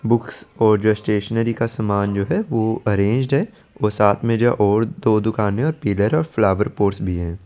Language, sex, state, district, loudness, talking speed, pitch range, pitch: Hindi, male, Chandigarh, Chandigarh, -19 LUFS, 210 wpm, 100-115 Hz, 110 Hz